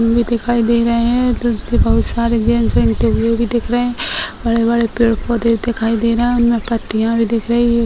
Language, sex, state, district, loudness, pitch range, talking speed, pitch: Hindi, female, Bihar, Sitamarhi, -15 LUFS, 220-235 Hz, 185 wpm, 230 Hz